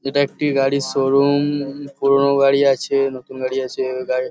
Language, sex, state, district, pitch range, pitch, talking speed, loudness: Bengali, male, West Bengal, Paschim Medinipur, 130-140 Hz, 135 Hz, 165 wpm, -18 LUFS